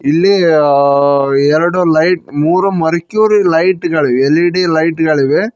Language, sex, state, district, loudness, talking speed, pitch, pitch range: Kannada, male, Karnataka, Koppal, -11 LUFS, 110 wpm, 165 Hz, 145-180 Hz